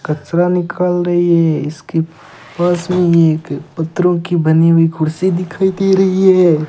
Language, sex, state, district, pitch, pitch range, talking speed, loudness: Hindi, male, Rajasthan, Bikaner, 175 Hz, 160-180 Hz, 150 wpm, -14 LUFS